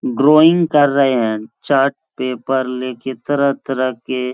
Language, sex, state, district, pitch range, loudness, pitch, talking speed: Hindi, male, Uttar Pradesh, Etah, 125-140 Hz, -16 LUFS, 135 Hz, 140 wpm